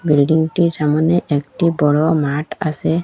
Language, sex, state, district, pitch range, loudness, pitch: Bengali, female, Assam, Hailakandi, 150-165 Hz, -16 LUFS, 155 Hz